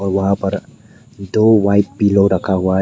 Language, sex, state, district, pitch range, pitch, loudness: Hindi, male, Meghalaya, West Garo Hills, 95-105 Hz, 100 Hz, -15 LUFS